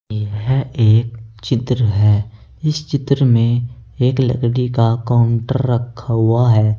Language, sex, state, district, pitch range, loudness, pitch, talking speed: Hindi, male, Uttar Pradesh, Saharanpur, 110-125 Hz, -16 LUFS, 120 Hz, 125 wpm